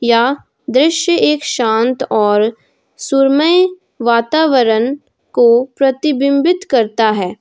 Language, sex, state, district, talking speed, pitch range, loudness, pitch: Hindi, female, Jharkhand, Ranchi, 90 wpm, 230-300 Hz, -13 LUFS, 260 Hz